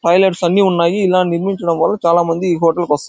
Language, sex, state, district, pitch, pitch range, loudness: Telugu, male, Andhra Pradesh, Anantapur, 175 Hz, 170-185 Hz, -14 LUFS